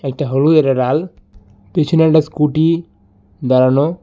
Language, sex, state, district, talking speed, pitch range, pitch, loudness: Bengali, male, West Bengal, Alipurduar, 120 wpm, 125-160 Hz, 145 Hz, -14 LUFS